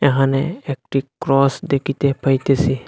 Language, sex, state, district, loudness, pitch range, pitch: Bengali, male, Assam, Hailakandi, -19 LUFS, 135-140 Hz, 135 Hz